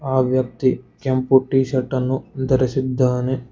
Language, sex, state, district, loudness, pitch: Kannada, male, Karnataka, Bangalore, -20 LUFS, 130 Hz